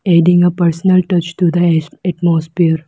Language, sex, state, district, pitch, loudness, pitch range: English, female, Arunachal Pradesh, Lower Dibang Valley, 175 Hz, -13 LUFS, 165-180 Hz